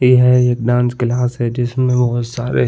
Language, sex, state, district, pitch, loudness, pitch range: Hindi, male, Bihar, Saran, 125 Hz, -15 LUFS, 120-125 Hz